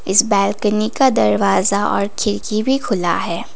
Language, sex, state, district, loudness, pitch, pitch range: Hindi, female, Sikkim, Gangtok, -17 LUFS, 210 Hz, 200-230 Hz